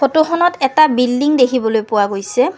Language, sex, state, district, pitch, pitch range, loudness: Assamese, female, Assam, Kamrup Metropolitan, 255 Hz, 225-310 Hz, -14 LUFS